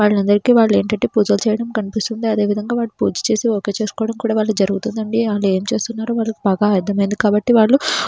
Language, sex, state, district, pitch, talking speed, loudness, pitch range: Telugu, female, Andhra Pradesh, Srikakulam, 220 Hz, 180 wpm, -17 LUFS, 205-230 Hz